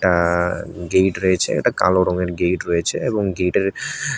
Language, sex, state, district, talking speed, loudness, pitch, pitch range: Bengali, male, Tripura, West Tripura, 145 wpm, -19 LUFS, 90 Hz, 90-95 Hz